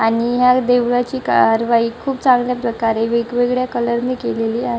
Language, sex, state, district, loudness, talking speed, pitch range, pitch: Marathi, male, Maharashtra, Chandrapur, -17 LUFS, 140 wpm, 230-250 Hz, 240 Hz